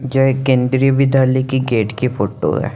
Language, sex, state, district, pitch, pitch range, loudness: Hindi, male, Chandigarh, Chandigarh, 130 Hz, 125-135 Hz, -16 LUFS